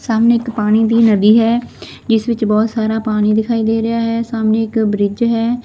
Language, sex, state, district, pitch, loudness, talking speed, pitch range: Punjabi, female, Punjab, Fazilka, 225 Hz, -14 LUFS, 200 wpm, 220-230 Hz